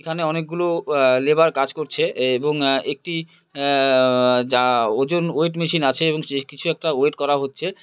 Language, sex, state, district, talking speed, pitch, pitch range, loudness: Bengali, male, West Bengal, Purulia, 175 wpm, 150 Hz, 135-165 Hz, -20 LUFS